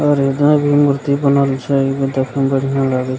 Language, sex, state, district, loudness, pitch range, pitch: Maithili, male, Bihar, Begusarai, -15 LUFS, 135-140 Hz, 135 Hz